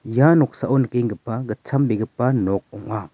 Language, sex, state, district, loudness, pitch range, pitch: Garo, male, Meghalaya, West Garo Hills, -21 LUFS, 110-135 Hz, 125 Hz